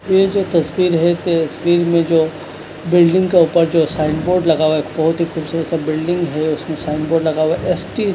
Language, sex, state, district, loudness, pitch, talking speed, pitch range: Hindi, male, Punjab, Kapurthala, -16 LUFS, 165 Hz, 230 wpm, 155-175 Hz